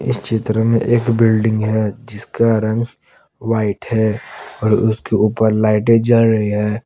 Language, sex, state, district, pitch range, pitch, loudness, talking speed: Hindi, male, Jharkhand, Palamu, 110-115 Hz, 110 Hz, -16 LUFS, 140 wpm